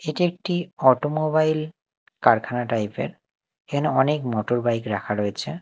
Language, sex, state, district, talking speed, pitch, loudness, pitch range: Bengali, male, Odisha, Nuapada, 115 wpm, 145 Hz, -23 LUFS, 115-155 Hz